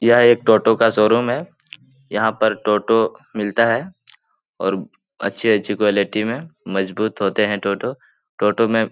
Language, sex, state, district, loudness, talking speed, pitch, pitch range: Hindi, male, Bihar, Lakhisarai, -18 LUFS, 150 wpm, 110 Hz, 105-120 Hz